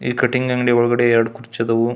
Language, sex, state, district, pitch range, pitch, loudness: Kannada, male, Karnataka, Belgaum, 115-125 Hz, 120 Hz, -17 LUFS